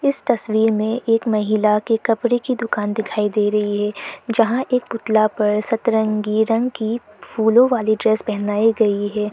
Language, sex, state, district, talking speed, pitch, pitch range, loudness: Hindi, female, Arunachal Pradesh, Lower Dibang Valley, 165 wpm, 220 Hz, 210-230 Hz, -19 LUFS